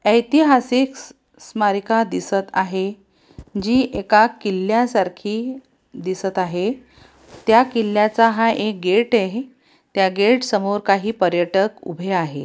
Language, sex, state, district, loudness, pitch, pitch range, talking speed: Marathi, female, Maharashtra, Pune, -19 LUFS, 210 Hz, 195-235 Hz, 105 wpm